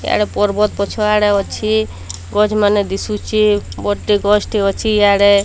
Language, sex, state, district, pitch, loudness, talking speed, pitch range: Odia, female, Odisha, Sambalpur, 205 Hz, -15 LUFS, 110 wpm, 200-210 Hz